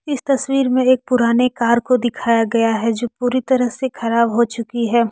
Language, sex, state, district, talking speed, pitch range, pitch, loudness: Hindi, female, Jharkhand, Deoghar, 200 wpm, 230-255 Hz, 240 Hz, -17 LUFS